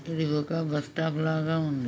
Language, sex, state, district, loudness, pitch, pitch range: Telugu, male, Andhra Pradesh, Krishna, -29 LUFS, 160 Hz, 150-160 Hz